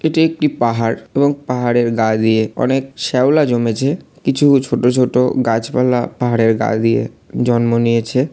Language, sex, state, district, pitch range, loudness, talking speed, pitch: Bengali, male, West Bengal, Jalpaiguri, 115-135 Hz, -16 LUFS, 135 wpm, 125 Hz